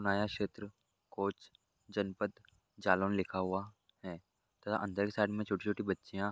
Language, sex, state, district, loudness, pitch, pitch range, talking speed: Hindi, male, Uttar Pradesh, Jalaun, -37 LUFS, 100 Hz, 95-105 Hz, 160 wpm